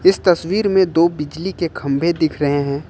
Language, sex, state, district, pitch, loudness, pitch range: Hindi, male, Jharkhand, Ranchi, 170 Hz, -18 LUFS, 150-185 Hz